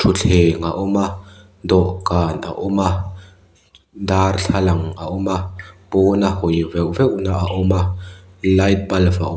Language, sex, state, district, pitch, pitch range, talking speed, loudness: Mizo, male, Mizoram, Aizawl, 95 Hz, 90-95 Hz, 155 wpm, -18 LUFS